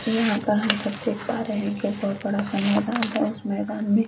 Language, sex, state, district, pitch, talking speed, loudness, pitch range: Hindi, female, Chhattisgarh, Bastar, 210 Hz, 235 wpm, -25 LUFS, 205-220 Hz